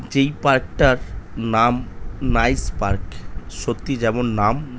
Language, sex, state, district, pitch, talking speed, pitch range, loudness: Bengali, male, West Bengal, North 24 Parganas, 115 Hz, 115 wpm, 100-125 Hz, -20 LUFS